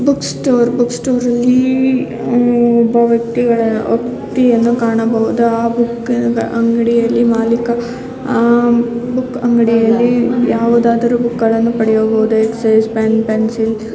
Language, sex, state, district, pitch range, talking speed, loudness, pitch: Kannada, female, Karnataka, Chamarajanagar, 230-240 Hz, 85 wpm, -13 LUFS, 235 Hz